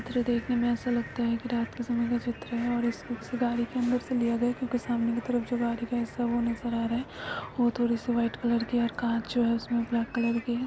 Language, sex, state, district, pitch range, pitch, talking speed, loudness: Hindi, female, Jharkhand, Jamtara, 235-245 Hz, 240 Hz, 260 wpm, -29 LUFS